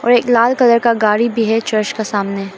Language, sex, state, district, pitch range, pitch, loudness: Hindi, female, Arunachal Pradesh, Papum Pare, 210-235 Hz, 225 Hz, -14 LUFS